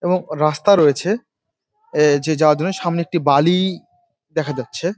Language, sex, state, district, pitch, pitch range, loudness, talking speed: Bengali, male, West Bengal, Dakshin Dinajpur, 170 Hz, 150-185 Hz, -18 LUFS, 155 wpm